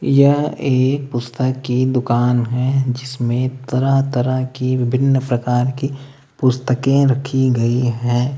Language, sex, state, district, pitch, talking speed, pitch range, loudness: Hindi, male, Uttar Pradesh, Lalitpur, 130 Hz, 120 wpm, 125-135 Hz, -17 LUFS